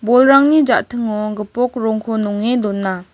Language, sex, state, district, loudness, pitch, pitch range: Garo, female, Meghalaya, West Garo Hills, -16 LUFS, 225 Hz, 210-245 Hz